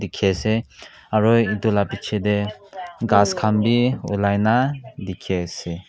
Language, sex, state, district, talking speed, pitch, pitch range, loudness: Nagamese, male, Nagaland, Kohima, 145 wpm, 110 Hz, 100-115 Hz, -20 LUFS